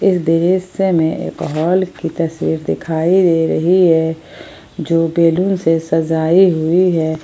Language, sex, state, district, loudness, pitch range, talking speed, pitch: Hindi, female, Jharkhand, Ranchi, -15 LUFS, 160-180 Hz, 140 wpm, 165 Hz